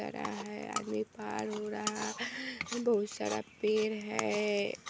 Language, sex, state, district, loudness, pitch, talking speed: Maithili, female, Bihar, Vaishali, -35 LUFS, 205 Hz, 135 wpm